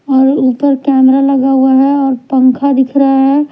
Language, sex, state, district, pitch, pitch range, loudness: Hindi, female, Punjab, Pathankot, 270 Hz, 265-275 Hz, -10 LUFS